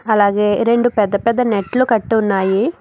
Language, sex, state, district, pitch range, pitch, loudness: Telugu, female, Telangana, Hyderabad, 205-235 Hz, 215 Hz, -15 LUFS